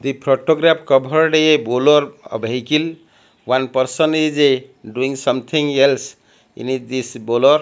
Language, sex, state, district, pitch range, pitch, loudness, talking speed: English, male, Odisha, Malkangiri, 130-155 Hz, 135 Hz, -17 LUFS, 140 wpm